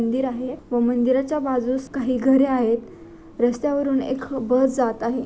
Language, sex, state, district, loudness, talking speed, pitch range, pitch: Marathi, female, Maharashtra, Sindhudurg, -22 LUFS, 150 wpm, 245-265 Hz, 255 Hz